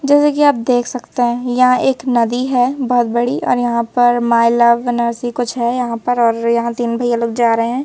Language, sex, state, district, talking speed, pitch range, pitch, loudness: Hindi, female, Madhya Pradesh, Bhopal, 230 wpm, 235-250 Hz, 240 Hz, -15 LUFS